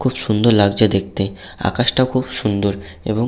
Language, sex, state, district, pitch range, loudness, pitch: Bengali, male, West Bengal, Jhargram, 100-120 Hz, -18 LUFS, 105 Hz